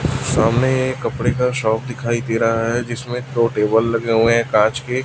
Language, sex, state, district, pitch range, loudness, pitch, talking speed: Hindi, male, Chhattisgarh, Raipur, 115-125 Hz, -18 LUFS, 120 Hz, 200 wpm